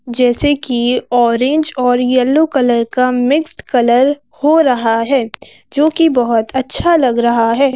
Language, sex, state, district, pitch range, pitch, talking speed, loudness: Hindi, female, Madhya Pradesh, Bhopal, 240-285 Hz, 255 Hz, 145 wpm, -13 LUFS